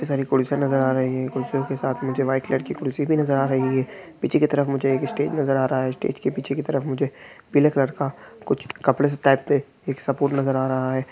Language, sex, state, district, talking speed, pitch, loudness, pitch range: Hindi, male, Chhattisgarh, Raigarh, 265 wpm, 135 Hz, -23 LUFS, 130-140 Hz